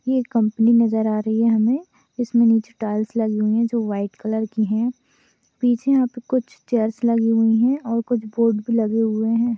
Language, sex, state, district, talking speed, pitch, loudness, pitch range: Hindi, female, Maharashtra, Aurangabad, 200 wpm, 230 Hz, -20 LUFS, 220-240 Hz